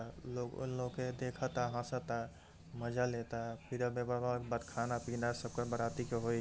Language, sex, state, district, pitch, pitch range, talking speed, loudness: Hindi, male, Uttar Pradesh, Gorakhpur, 120 Hz, 115-125 Hz, 120 wpm, -40 LUFS